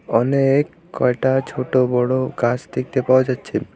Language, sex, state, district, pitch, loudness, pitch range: Bengali, male, West Bengal, Alipurduar, 130 Hz, -19 LUFS, 125-130 Hz